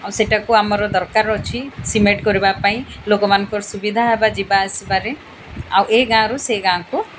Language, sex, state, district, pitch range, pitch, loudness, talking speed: Odia, female, Odisha, Sambalpur, 200-220 Hz, 210 Hz, -17 LUFS, 175 wpm